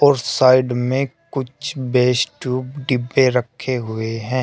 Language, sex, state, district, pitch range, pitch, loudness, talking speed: Hindi, male, Uttar Pradesh, Shamli, 125-135 Hz, 130 Hz, -19 LUFS, 135 wpm